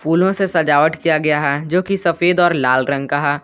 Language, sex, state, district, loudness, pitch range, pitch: Hindi, male, Jharkhand, Garhwa, -16 LUFS, 145-175 Hz, 155 Hz